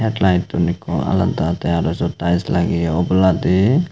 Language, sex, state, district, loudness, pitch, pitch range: Chakma, male, Tripura, Unakoti, -18 LUFS, 90 Hz, 85-95 Hz